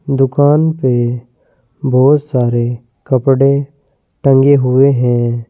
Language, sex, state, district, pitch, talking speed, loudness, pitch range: Hindi, male, Uttar Pradesh, Saharanpur, 130 Hz, 85 wpm, -12 LUFS, 120-140 Hz